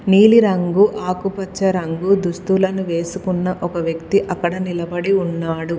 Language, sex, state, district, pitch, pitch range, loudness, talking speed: Telugu, female, Telangana, Komaram Bheem, 185 Hz, 170-195 Hz, -18 LUFS, 115 wpm